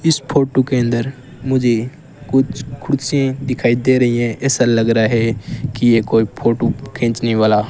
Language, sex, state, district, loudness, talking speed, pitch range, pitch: Hindi, male, Rajasthan, Bikaner, -16 LUFS, 165 wpm, 115-135 Hz, 125 Hz